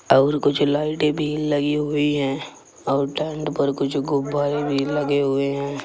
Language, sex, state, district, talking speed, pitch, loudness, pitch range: Hindi, male, Uttar Pradesh, Saharanpur, 165 wpm, 145 Hz, -22 LUFS, 140-150 Hz